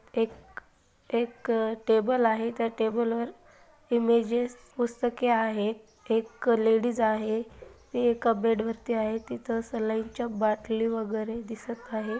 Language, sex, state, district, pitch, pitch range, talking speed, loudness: Marathi, female, Maharashtra, Solapur, 230 Hz, 220-235 Hz, 120 wpm, -28 LUFS